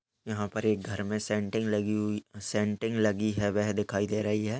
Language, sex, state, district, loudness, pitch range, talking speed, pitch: Hindi, male, Uttar Pradesh, Gorakhpur, -30 LUFS, 105-110 Hz, 210 wpm, 105 Hz